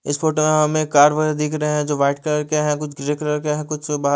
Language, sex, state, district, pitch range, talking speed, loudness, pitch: Hindi, male, Chandigarh, Chandigarh, 150-155 Hz, 315 wpm, -19 LUFS, 150 Hz